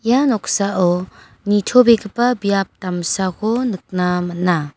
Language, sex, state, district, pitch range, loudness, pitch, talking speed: Garo, female, Meghalaya, West Garo Hills, 180-230 Hz, -17 LUFS, 200 Hz, 90 wpm